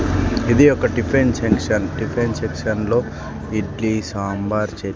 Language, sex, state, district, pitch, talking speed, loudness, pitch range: Telugu, male, Andhra Pradesh, Sri Satya Sai, 110 Hz, 120 wpm, -19 LUFS, 100-120 Hz